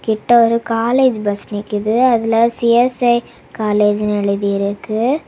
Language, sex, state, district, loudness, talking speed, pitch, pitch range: Tamil, female, Tamil Nadu, Kanyakumari, -15 LUFS, 125 wpm, 225 Hz, 210-235 Hz